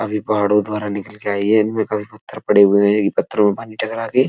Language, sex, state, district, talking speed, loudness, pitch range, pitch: Hindi, male, Uttar Pradesh, Etah, 280 wpm, -17 LUFS, 105-110 Hz, 105 Hz